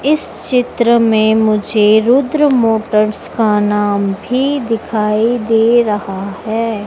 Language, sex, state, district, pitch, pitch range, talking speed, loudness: Hindi, female, Madhya Pradesh, Dhar, 220 Hz, 210-240 Hz, 115 wpm, -13 LUFS